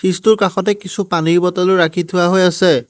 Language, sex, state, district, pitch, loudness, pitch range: Assamese, male, Assam, Hailakandi, 185 Hz, -14 LUFS, 175-195 Hz